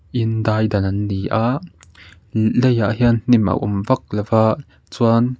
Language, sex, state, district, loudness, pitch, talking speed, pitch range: Mizo, male, Mizoram, Aizawl, -18 LUFS, 110 Hz, 180 wpm, 100-120 Hz